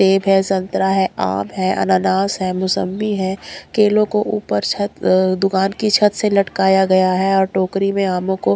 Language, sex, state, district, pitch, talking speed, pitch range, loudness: Hindi, female, Punjab, Kapurthala, 190 Hz, 190 wpm, 185-200 Hz, -17 LUFS